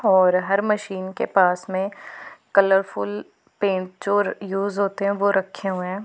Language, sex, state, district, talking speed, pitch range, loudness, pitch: Hindi, female, Punjab, Pathankot, 160 wpm, 185-200 Hz, -22 LUFS, 195 Hz